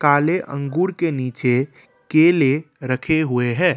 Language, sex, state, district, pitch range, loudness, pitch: Hindi, male, Assam, Kamrup Metropolitan, 130-165 Hz, -19 LUFS, 145 Hz